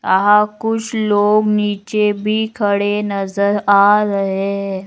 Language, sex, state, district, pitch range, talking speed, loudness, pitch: Magahi, female, Bihar, Gaya, 200-210 Hz, 135 wpm, -15 LUFS, 205 Hz